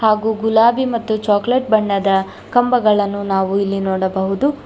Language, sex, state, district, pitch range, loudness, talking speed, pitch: Kannada, female, Karnataka, Bangalore, 195-235 Hz, -16 LUFS, 115 wpm, 215 Hz